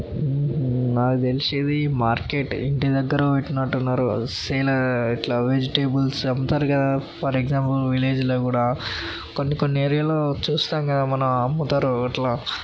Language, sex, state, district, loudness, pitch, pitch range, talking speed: Telugu, male, Telangana, Nalgonda, -22 LUFS, 135 Hz, 125-140 Hz, 125 wpm